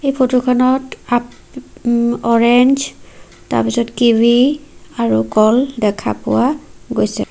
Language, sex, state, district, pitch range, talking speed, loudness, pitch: Assamese, female, Assam, Sonitpur, 235-260 Hz, 115 wpm, -15 LUFS, 240 Hz